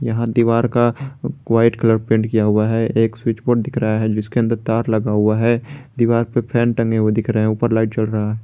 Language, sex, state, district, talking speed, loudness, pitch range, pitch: Hindi, male, Jharkhand, Garhwa, 250 wpm, -17 LUFS, 110-120 Hz, 115 Hz